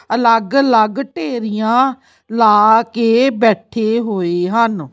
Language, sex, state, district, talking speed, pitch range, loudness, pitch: Punjabi, female, Chandigarh, Chandigarh, 95 wpm, 215-240 Hz, -14 LUFS, 230 Hz